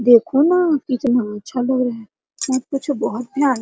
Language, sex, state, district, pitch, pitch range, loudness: Hindi, female, Bihar, Araria, 255 Hz, 240-275 Hz, -19 LUFS